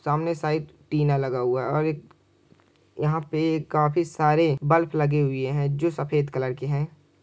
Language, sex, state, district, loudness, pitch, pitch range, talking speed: Maithili, male, Bihar, Supaul, -24 LUFS, 150 Hz, 145-160 Hz, 175 wpm